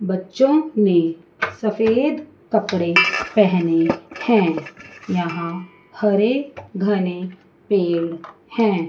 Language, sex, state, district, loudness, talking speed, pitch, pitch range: Hindi, female, Chandigarh, Chandigarh, -19 LUFS, 75 wpm, 190 Hz, 170-220 Hz